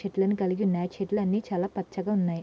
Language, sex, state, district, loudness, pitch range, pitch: Telugu, female, Andhra Pradesh, Srikakulam, -28 LUFS, 185-200 Hz, 195 Hz